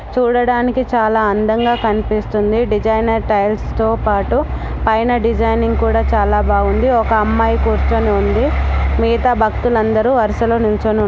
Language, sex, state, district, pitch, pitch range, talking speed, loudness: Telugu, female, Andhra Pradesh, Anantapur, 225 Hz, 215-235 Hz, 115 wpm, -15 LUFS